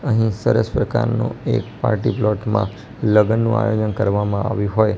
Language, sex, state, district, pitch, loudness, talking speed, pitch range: Gujarati, male, Gujarat, Gandhinagar, 110 Hz, -19 LUFS, 155 wpm, 105-110 Hz